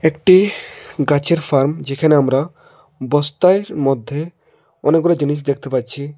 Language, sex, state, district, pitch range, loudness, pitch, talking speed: Bengali, male, Tripura, West Tripura, 140-165 Hz, -16 LUFS, 150 Hz, 105 wpm